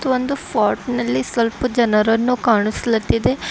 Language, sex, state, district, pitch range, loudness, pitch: Kannada, female, Karnataka, Bidar, 225-250 Hz, -18 LUFS, 235 Hz